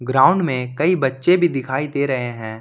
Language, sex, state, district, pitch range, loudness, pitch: Hindi, male, Jharkhand, Ranchi, 125-170 Hz, -18 LUFS, 135 Hz